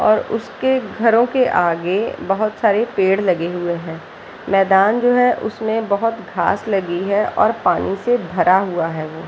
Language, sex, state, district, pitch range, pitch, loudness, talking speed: Hindi, female, Bihar, Jahanabad, 180-225 Hz, 200 Hz, -17 LUFS, 175 wpm